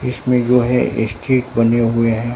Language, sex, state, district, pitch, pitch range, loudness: Hindi, male, Bihar, Katihar, 120 Hz, 115-125 Hz, -16 LUFS